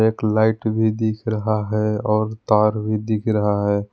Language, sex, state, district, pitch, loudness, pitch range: Hindi, male, Jharkhand, Palamu, 110 Hz, -20 LUFS, 105-110 Hz